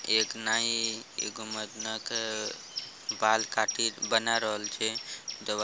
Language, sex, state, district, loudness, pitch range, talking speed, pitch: Hindi, male, Bihar, Araria, -30 LUFS, 110-115 Hz, 105 wpm, 110 Hz